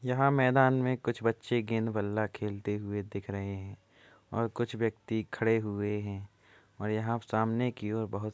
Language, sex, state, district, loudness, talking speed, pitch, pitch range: Hindi, male, Uttar Pradesh, Muzaffarnagar, -32 LUFS, 180 wpm, 110 Hz, 100-115 Hz